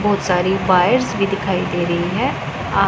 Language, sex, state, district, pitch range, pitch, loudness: Hindi, female, Punjab, Pathankot, 180-200 Hz, 190 Hz, -18 LUFS